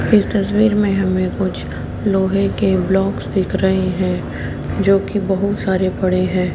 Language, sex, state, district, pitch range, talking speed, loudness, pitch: Hindi, female, Haryana, Jhajjar, 185-200 Hz, 155 wpm, -17 LUFS, 190 Hz